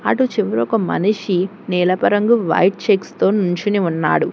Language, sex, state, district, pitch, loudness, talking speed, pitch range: Telugu, female, Telangana, Hyderabad, 200 Hz, -17 LUFS, 150 wpm, 180-210 Hz